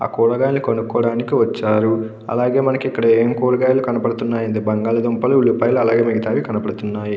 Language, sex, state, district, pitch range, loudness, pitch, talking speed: Telugu, male, Andhra Pradesh, Krishna, 110-125 Hz, -18 LUFS, 115 Hz, 125 wpm